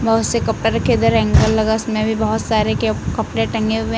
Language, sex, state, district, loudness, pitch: Hindi, female, Uttar Pradesh, Lucknow, -17 LUFS, 220 Hz